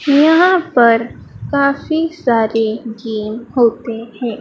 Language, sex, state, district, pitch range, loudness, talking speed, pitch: Hindi, female, Madhya Pradesh, Dhar, 225-285 Hz, -15 LUFS, 95 wpm, 235 Hz